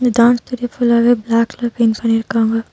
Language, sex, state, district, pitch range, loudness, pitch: Tamil, female, Tamil Nadu, Nilgiris, 225-245 Hz, -15 LUFS, 235 Hz